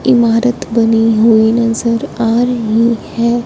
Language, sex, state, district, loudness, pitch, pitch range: Hindi, female, Punjab, Fazilka, -12 LUFS, 230 Hz, 225-235 Hz